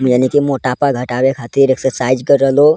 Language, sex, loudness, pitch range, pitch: Angika, male, -14 LUFS, 125-140 Hz, 135 Hz